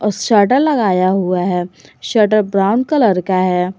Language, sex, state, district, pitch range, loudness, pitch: Hindi, female, Jharkhand, Garhwa, 180-215 Hz, -14 LUFS, 190 Hz